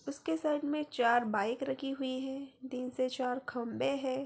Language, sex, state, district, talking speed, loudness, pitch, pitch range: Hindi, female, Bihar, Gaya, 195 wpm, -34 LUFS, 265 Hz, 255-275 Hz